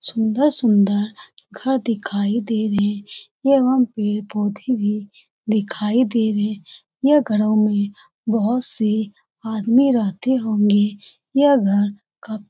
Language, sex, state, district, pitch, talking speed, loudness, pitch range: Hindi, female, Bihar, Saran, 215 Hz, 135 wpm, -19 LUFS, 205-250 Hz